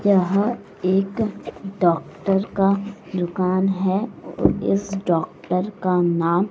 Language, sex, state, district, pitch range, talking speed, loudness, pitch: Hindi, female, Bihar, West Champaran, 180-200 Hz, 90 wpm, -22 LUFS, 190 Hz